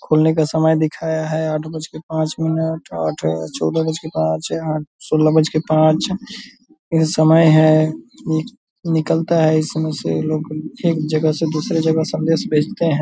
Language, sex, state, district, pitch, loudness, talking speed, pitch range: Hindi, male, Bihar, Purnia, 155 Hz, -18 LUFS, 170 wpm, 155-160 Hz